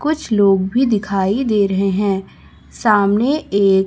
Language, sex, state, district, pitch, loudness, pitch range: Hindi, male, Chhattisgarh, Raipur, 205 Hz, -16 LUFS, 195-235 Hz